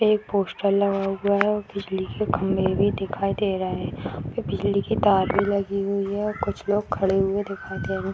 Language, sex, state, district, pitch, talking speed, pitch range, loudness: Hindi, female, Uttar Pradesh, Deoria, 200 Hz, 220 wpm, 195-200 Hz, -24 LUFS